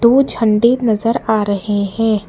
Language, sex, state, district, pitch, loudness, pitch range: Hindi, female, Karnataka, Bangalore, 220 Hz, -15 LUFS, 205-235 Hz